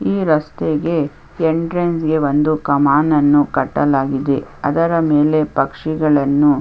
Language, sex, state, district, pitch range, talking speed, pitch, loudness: Kannada, female, Karnataka, Chamarajanagar, 145-160 Hz, 100 wpm, 150 Hz, -16 LUFS